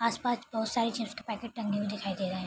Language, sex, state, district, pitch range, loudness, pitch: Hindi, female, Bihar, Araria, 205-230 Hz, -33 LUFS, 220 Hz